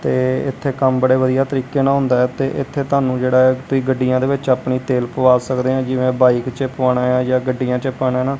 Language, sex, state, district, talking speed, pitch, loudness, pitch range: Punjabi, male, Punjab, Kapurthala, 235 wpm, 130 Hz, -17 LUFS, 130-135 Hz